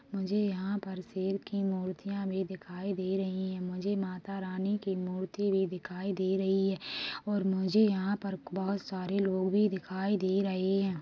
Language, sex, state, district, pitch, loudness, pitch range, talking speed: Hindi, female, Chhattisgarh, Rajnandgaon, 190 Hz, -32 LUFS, 185-200 Hz, 180 wpm